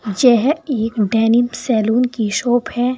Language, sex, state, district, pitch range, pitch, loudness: Hindi, female, Uttar Pradesh, Saharanpur, 225-250 Hz, 240 Hz, -16 LUFS